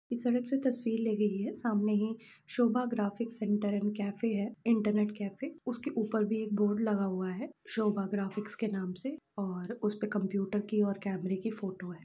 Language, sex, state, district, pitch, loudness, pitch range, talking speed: Hindi, female, Uttar Pradesh, Jalaun, 210 Hz, -33 LUFS, 205-230 Hz, 200 wpm